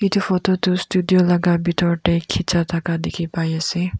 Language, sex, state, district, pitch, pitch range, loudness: Nagamese, female, Nagaland, Kohima, 175 Hz, 170-185 Hz, -19 LUFS